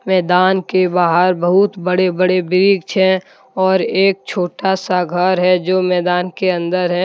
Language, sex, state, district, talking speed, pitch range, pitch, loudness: Hindi, male, Jharkhand, Deoghar, 160 wpm, 180-190 Hz, 185 Hz, -15 LUFS